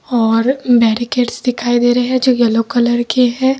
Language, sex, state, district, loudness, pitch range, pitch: Hindi, female, Uttar Pradesh, Lalitpur, -14 LUFS, 235-255 Hz, 240 Hz